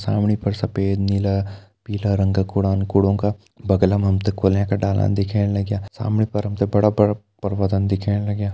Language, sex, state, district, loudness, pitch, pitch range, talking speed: Hindi, male, Uttarakhand, Uttarkashi, -20 LUFS, 100 Hz, 100-105 Hz, 190 wpm